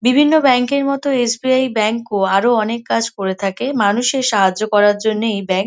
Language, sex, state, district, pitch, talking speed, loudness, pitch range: Bengali, female, West Bengal, North 24 Parganas, 230 Hz, 200 wpm, -16 LUFS, 205-260 Hz